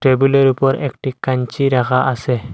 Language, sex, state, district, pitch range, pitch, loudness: Bengali, male, Assam, Hailakandi, 125-135 Hz, 130 Hz, -16 LUFS